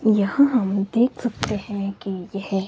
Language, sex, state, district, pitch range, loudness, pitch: Hindi, male, Himachal Pradesh, Shimla, 195-230 Hz, -22 LUFS, 200 Hz